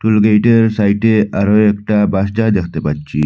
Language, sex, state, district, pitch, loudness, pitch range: Bengali, male, Assam, Hailakandi, 105 Hz, -13 LUFS, 95-110 Hz